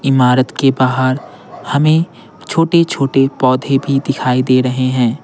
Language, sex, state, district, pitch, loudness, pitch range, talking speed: Hindi, male, Bihar, Patna, 135 Hz, -14 LUFS, 130-145 Hz, 125 wpm